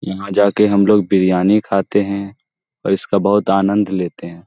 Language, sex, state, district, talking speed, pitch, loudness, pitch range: Hindi, male, Jharkhand, Jamtara, 185 wpm, 100 Hz, -16 LUFS, 95-105 Hz